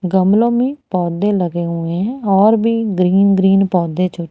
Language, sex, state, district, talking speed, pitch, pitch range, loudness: Hindi, female, Haryana, Rohtak, 165 wpm, 190 Hz, 180-210 Hz, -15 LUFS